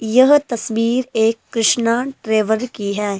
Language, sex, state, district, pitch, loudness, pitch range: Hindi, female, Himachal Pradesh, Shimla, 230 Hz, -17 LUFS, 220-250 Hz